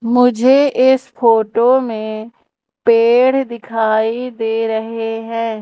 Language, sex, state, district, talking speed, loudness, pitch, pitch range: Hindi, female, Madhya Pradesh, Umaria, 95 wpm, -15 LUFS, 230 Hz, 225-250 Hz